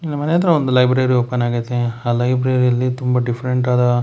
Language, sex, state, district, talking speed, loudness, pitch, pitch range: Kannada, male, Karnataka, Bangalore, 210 wpm, -17 LUFS, 125 Hz, 120-130 Hz